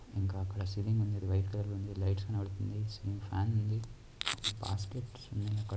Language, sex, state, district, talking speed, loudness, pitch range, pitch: Telugu, male, Andhra Pradesh, Anantapur, 115 wpm, -36 LUFS, 100-110 Hz, 100 Hz